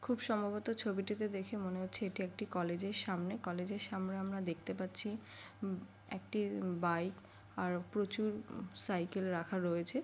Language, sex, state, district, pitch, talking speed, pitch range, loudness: Bengali, female, West Bengal, Paschim Medinipur, 195 Hz, 160 wpm, 180-210 Hz, -40 LUFS